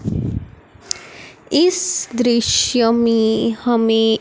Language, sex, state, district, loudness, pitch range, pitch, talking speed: Hindi, male, Punjab, Fazilka, -17 LUFS, 225-250 Hz, 235 Hz, 55 wpm